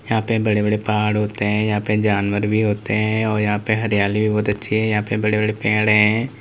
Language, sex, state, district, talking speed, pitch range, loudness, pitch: Hindi, male, Uttar Pradesh, Lalitpur, 235 wpm, 105-110 Hz, -19 LUFS, 105 Hz